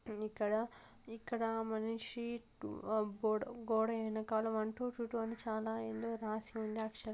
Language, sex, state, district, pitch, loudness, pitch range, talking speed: Telugu, female, Andhra Pradesh, Anantapur, 220 Hz, -40 LUFS, 220-230 Hz, 115 wpm